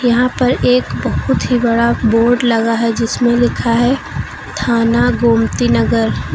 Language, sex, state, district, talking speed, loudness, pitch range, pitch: Hindi, female, Uttar Pradesh, Lucknow, 140 wpm, -14 LUFS, 225-245 Hz, 230 Hz